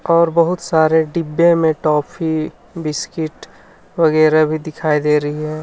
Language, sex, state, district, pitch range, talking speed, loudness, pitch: Hindi, male, Jharkhand, Ranchi, 155-170 Hz, 140 wpm, -16 LUFS, 155 Hz